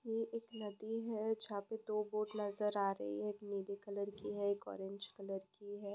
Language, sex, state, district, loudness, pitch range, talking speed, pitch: Hindi, female, West Bengal, Purulia, -42 LUFS, 200-215 Hz, 200 wpm, 205 Hz